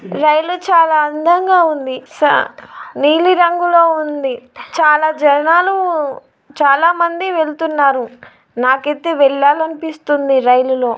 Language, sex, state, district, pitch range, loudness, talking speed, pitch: Telugu, female, Andhra Pradesh, Guntur, 280-335 Hz, -13 LUFS, 80 wpm, 305 Hz